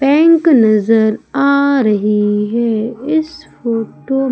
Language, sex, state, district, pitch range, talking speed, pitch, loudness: Hindi, female, Madhya Pradesh, Umaria, 220-280 Hz, 110 wpm, 235 Hz, -13 LUFS